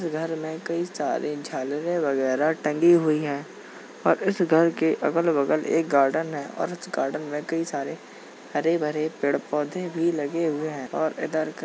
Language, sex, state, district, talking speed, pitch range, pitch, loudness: Hindi, male, Uttar Pradesh, Jalaun, 165 wpm, 150-165 Hz, 160 Hz, -25 LUFS